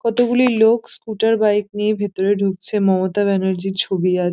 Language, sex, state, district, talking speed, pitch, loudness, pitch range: Bengali, female, West Bengal, North 24 Parganas, 165 wpm, 205 Hz, -18 LUFS, 190-220 Hz